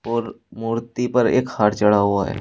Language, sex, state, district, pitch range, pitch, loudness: Hindi, male, Uttar Pradesh, Shamli, 105-120 Hz, 115 Hz, -20 LUFS